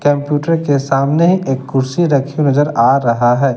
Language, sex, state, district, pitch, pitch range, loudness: Hindi, male, Bihar, West Champaran, 140 Hz, 135-150 Hz, -14 LUFS